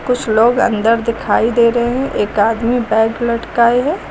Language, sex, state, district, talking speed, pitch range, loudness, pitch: Hindi, female, Uttar Pradesh, Lucknow, 175 wpm, 225-245 Hz, -14 LUFS, 235 Hz